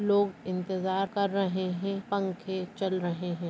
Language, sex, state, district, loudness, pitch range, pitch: Hindi, male, West Bengal, Purulia, -31 LUFS, 185-195 Hz, 190 Hz